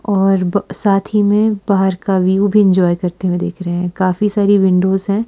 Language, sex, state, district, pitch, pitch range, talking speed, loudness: Hindi, female, Himachal Pradesh, Shimla, 195 Hz, 185-205 Hz, 215 wpm, -15 LUFS